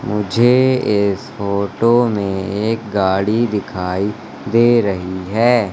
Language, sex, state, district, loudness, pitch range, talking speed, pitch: Hindi, male, Madhya Pradesh, Katni, -16 LUFS, 100-115 Hz, 105 wpm, 105 Hz